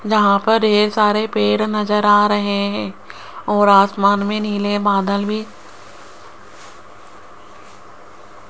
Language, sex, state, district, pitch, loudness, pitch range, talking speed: Hindi, female, Rajasthan, Jaipur, 205 Hz, -16 LUFS, 200-210 Hz, 115 wpm